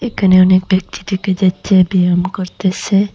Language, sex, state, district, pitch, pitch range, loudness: Bengali, female, Assam, Hailakandi, 185 Hz, 185-195 Hz, -14 LUFS